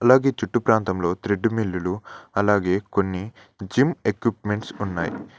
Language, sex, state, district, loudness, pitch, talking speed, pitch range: Telugu, male, Telangana, Mahabubabad, -23 LUFS, 105 Hz, 110 wpm, 95-115 Hz